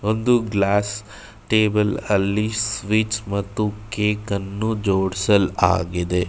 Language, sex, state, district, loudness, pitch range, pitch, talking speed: Kannada, male, Karnataka, Bangalore, -21 LUFS, 100-110 Hz, 105 Hz, 95 wpm